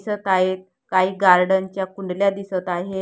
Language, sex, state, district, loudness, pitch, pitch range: Marathi, female, Maharashtra, Gondia, -20 LUFS, 190 Hz, 185-195 Hz